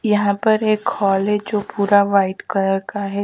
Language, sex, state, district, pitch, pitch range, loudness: Hindi, female, Chhattisgarh, Raipur, 205 Hz, 195-210 Hz, -18 LUFS